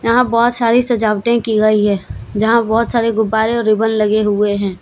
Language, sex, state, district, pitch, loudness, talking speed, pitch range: Hindi, female, Jharkhand, Deoghar, 220 Hz, -14 LUFS, 200 wpm, 215-235 Hz